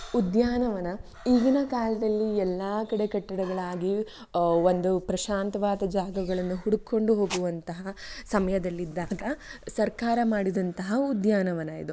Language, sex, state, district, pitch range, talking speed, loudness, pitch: Kannada, female, Karnataka, Shimoga, 185-225 Hz, 80 wpm, -27 LUFS, 200 Hz